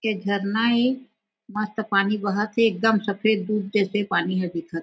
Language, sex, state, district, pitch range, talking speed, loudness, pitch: Chhattisgarhi, female, Chhattisgarh, Raigarh, 200-220 Hz, 185 wpm, -23 LUFS, 210 Hz